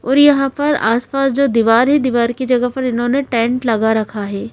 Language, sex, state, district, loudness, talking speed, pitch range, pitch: Hindi, female, Madhya Pradesh, Bhopal, -15 LUFS, 210 wpm, 230-275 Hz, 245 Hz